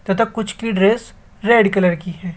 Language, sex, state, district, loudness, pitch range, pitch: Hindi, male, Rajasthan, Jaipur, -17 LUFS, 185-225 Hz, 205 Hz